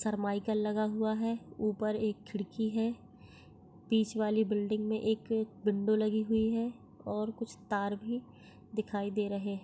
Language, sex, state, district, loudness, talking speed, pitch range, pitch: Hindi, female, Jharkhand, Sahebganj, -34 LUFS, 155 wpm, 210-220 Hz, 215 Hz